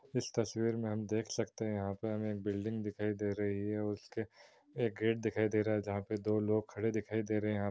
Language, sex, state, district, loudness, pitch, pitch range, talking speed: Hindi, male, Bihar, Saran, -36 LUFS, 110 Hz, 105-110 Hz, 240 wpm